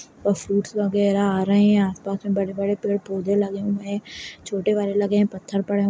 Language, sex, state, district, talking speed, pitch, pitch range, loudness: Kumaoni, female, Uttarakhand, Uttarkashi, 215 wpm, 200 Hz, 195-205 Hz, -22 LUFS